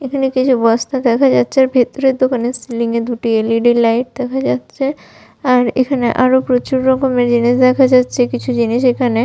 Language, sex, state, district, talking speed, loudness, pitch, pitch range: Bengali, female, West Bengal, Malda, 170 wpm, -14 LUFS, 250 Hz, 235-260 Hz